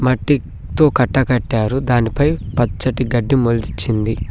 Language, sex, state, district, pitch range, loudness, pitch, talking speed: Telugu, male, Telangana, Mahabubabad, 115-130 Hz, -17 LUFS, 125 Hz, 85 wpm